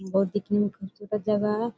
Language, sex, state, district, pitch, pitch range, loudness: Hindi, female, Chhattisgarh, Korba, 205 Hz, 195-210 Hz, -27 LUFS